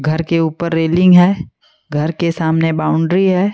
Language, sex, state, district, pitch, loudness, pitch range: Hindi, female, Uttar Pradesh, Lucknow, 165 Hz, -14 LUFS, 160-175 Hz